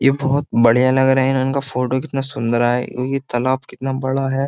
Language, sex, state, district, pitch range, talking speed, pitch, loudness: Hindi, male, Uttar Pradesh, Jyotiba Phule Nagar, 125-135 Hz, 240 wpm, 130 Hz, -18 LUFS